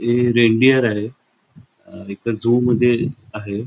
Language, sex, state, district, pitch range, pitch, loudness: Marathi, male, Goa, North and South Goa, 110-120 Hz, 120 Hz, -17 LUFS